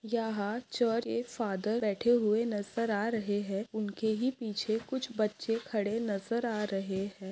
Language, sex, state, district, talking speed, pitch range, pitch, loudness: Hindi, female, Maharashtra, Nagpur, 165 wpm, 205-230 Hz, 220 Hz, -33 LUFS